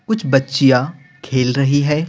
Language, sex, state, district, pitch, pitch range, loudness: Hindi, male, Bihar, Patna, 140 Hz, 135-150 Hz, -16 LUFS